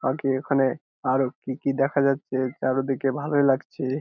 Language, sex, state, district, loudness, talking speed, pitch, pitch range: Bengali, male, West Bengal, Jhargram, -24 LUFS, 165 wpm, 135 Hz, 130-140 Hz